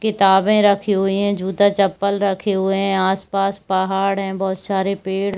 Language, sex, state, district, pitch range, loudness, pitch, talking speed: Hindi, female, Chhattisgarh, Bastar, 190-200 Hz, -18 LUFS, 195 Hz, 165 wpm